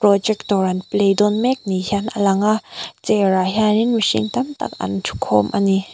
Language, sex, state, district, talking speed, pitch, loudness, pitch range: Mizo, female, Mizoram, Aizawl, 200 wpm, 200 Hz, -18 LUFS, 190-215 Hz